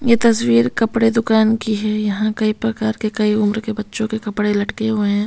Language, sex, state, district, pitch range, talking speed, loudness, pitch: Hindi, female, Bihar, Katihar, 210-220 Hz, 215 wpm, -18 LUFS, 215 Hz